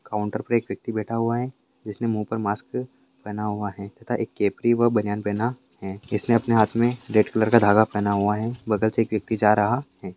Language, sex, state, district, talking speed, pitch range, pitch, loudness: Hindi, male, Maharashtra, Pune, 230 wpm, 105-115 Hz, 110 Hz, -23 LUFS